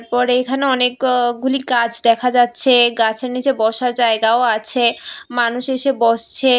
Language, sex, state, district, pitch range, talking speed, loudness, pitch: Bengali, female, Tripura, West Tripura, 235-255 Hz, 125 wpm, -16 LUFS, 245 Hz